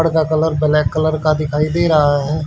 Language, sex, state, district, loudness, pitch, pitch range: Hindi, male, Haryana, Charkhi Dadri, -16 LUFS, 155 Hz, 150-155 Hz